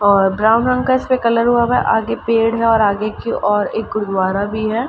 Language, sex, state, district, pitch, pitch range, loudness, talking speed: Hindi, female, Uttar Pradesh, Ghazipur, 225 Hz, 205-235 Hz, -16 LUFS, 245 wpm